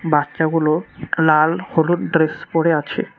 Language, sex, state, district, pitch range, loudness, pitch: Bengali, male, West Bengal, Cooch Behar, 155-165 Hz, -18 LUFS, 160 Hz